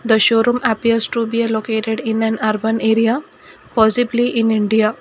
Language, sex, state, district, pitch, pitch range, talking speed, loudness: English, female, Karnataka, Bangalore, 225 Hz, 220-235 Hz, 165 wpm, -16 LUFS